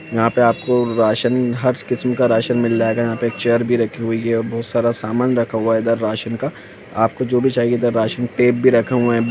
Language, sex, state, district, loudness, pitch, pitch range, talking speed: Hindi, male, Jharkhand, Sahebganj, -18 LUFS, 120 Hz, 115-125 Hz, 225 wpm